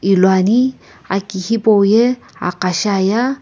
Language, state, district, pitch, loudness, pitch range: Sumi, Nagaland, Kohima, 200 Hz, -15 LUFS, 190-230 Hz